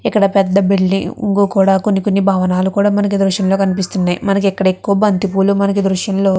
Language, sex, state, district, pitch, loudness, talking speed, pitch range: Telugu, female, Andhra Pradesh, Chittoor, 195 Hz, -14 LUFS, 170 wpm, 190-200 Hz